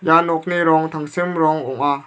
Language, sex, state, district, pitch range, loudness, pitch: Garo, male, Meghalaya, South Garo Hills, 155-165 Hz, -18 LUFS, 160 Hz